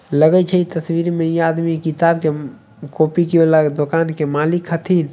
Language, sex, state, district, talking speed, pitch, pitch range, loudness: Maithili, male, Bihar, Samastipur, 165 wpm, 165 Hz, 155-170 Hz, -16 LUFS